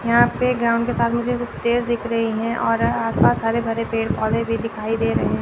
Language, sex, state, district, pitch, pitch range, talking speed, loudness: Hindi, female, Chandigarh, Chandigarh, 230 Hz, 225-235 Hz, 230 wpm, -20 LUFS